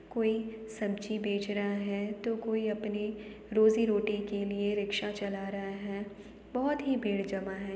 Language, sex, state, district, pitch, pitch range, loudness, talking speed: Hindi, female, Uttar Pradesh, Jalaun, 205 Hz, 200-220 Hz, -33 LUFS, 160 wpm